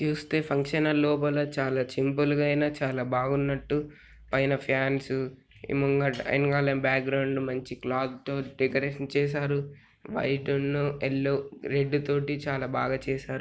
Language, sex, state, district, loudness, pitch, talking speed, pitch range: Telugu, male, Telangana, Nalgonda, -28 LUFS, 140 Hz, 130 wpm, 135-145 Hz